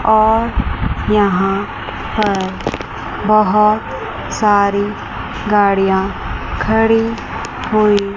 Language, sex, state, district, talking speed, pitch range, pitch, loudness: Hindi, female, Chandigarh, Chandigarh, 60 wpm, 200-215 Hz, 210 Hz, -16 LUFS